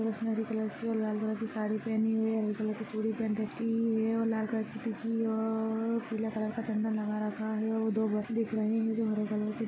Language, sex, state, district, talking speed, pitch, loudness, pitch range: Hindi, female, Chhattisgarh, Balrampur, 240 wpm, 220 Hz, -32 LUFS, 215-225 Hz